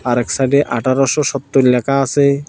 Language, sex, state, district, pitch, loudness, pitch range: Bengali, male, Tripura, South Tripura, 135 Hz, -15 LUFS, 125-140 Hz